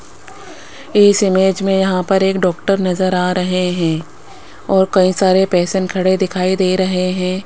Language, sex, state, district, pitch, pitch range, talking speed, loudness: Hindi, female, Rajasthan, Jaipur, 185 Hz, 185-190 Hz, 160 wpm, -15 LUFS